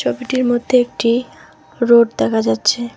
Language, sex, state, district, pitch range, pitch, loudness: Bengali, female, West Bengal, Alipurduar, 155-245 Hz, 235 Hz, -16 LUFS